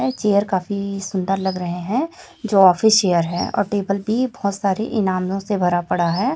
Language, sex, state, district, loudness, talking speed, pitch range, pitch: Hindi, female, Chhattisgarh, Raipur, -19 LUFS, 200 wpm, 185-220 Hz, 200 Hz